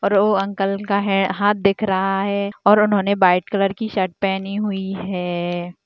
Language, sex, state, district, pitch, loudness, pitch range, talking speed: Hindi, female, Uttarakhand, Tehri Garhwal, 195 Hz, -19 LUFS, 190-200 Hz, 175 wpm